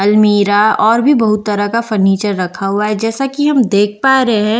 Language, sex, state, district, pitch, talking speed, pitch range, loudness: Hindi, female, Bihar, Katihar, 215 Hz, 220 wpm, 205-230 Hz, -12 LUFS